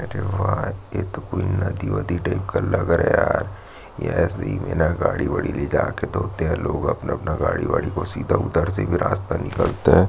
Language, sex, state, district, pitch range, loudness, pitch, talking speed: Hindi, male, Chhattisgarh, Jashpur, 85-100 Hz, -22 LUFS, 95 Hz, 200 wpm